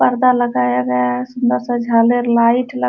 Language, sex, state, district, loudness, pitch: Hindi, female, Uttar Pradesh, Jalaun, -15 LUFS, 230 Hz